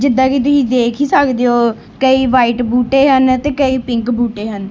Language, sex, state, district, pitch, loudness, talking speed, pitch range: Punjabi, female, Punjab, Kapurthala, 255 Hz, -13 LUFS, 205 wpm, 240-270 Hz